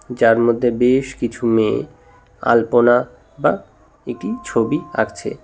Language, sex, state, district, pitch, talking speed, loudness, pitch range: Bengali, male, West Bengal, Cooch Behar, 120 Hz, 110 wpm, -18 LUFS, 115-125 Hz